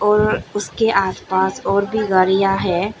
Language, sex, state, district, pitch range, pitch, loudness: Hindi, female, Arunachal Pradesh, Lower Dibang Valley, 190-210 Hz, 195 Hz, -18 LUFS